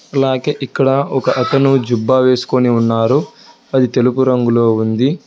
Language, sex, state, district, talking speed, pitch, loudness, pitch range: Telugu, male, Telangana, Hyderabad, 125 wpm, 130 Hz, -14 LUFS, 125-135 Hz